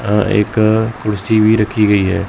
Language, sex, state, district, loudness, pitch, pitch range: Hindi, male, Chandigarh, Chandigarh, -14 LUFS, 105 Hz, 105-110 Hz